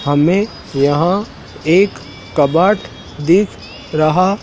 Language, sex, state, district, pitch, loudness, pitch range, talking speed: Hindi, male, Madhya Pradesh, Dhar, 165 Hz, -15 LUFS, 145-195 Hz, 80 wpm